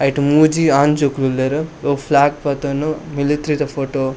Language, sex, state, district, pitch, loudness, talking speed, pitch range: Tulu, male, Karnataka, Dakshina Kannada, 145 Hz, -17 LUFS, 175 wpm, 140-150 Hz